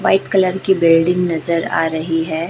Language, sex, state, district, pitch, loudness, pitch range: Hindi, female, Chhattisgarh, Raipur, 170 Hz, -16 LUFS, 165-180 Hz